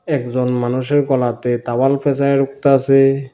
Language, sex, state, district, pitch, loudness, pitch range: Bengali, male, Tripura, South Tripura, 135 Hz, -16 LUFS, 125-140 Hz